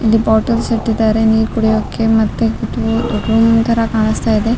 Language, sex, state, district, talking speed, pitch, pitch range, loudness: Kannada, female, Karnataka, Raichur, 145 wpm, 225 Hz, 220-230 Hz, -14 LUFS